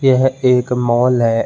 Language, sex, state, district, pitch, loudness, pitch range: Hindi, male, Chhattisgarh, Bilaspur, 125 Hz, -14 LUFS, 120-130 Hz